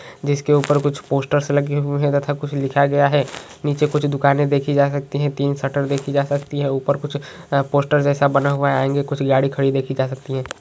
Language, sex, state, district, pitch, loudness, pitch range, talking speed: Magahi, male, Bihar, Gaya, 140 Hz, -19 LUFS, 140-145 Hz, 225 wpm